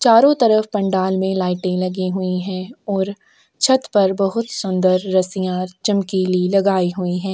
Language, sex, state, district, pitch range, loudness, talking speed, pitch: Hindi, female, Maharashtra, Aurangabad, 185-200 Hz, -18 LUFS, 145 wpm, 190 Hz